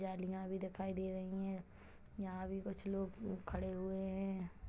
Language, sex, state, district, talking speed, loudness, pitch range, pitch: Hindi, female, Chhattisgarh, Kabirdham, 165 wpm, -44 LUFS, 185-195 Hz, 190 Hz